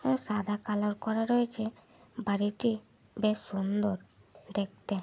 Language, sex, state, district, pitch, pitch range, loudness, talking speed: Bengali, female, West Bengal, Malda, 210 Hz, 205-220 Hz, -32 LUFS, 105 wpm